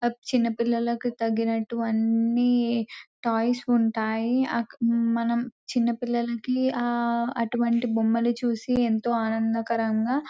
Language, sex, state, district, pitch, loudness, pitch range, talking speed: Telugu, female, Telangana, Nalgonda, 235 Hz, -25 LUFS, 230-240 Hz, 80 wpm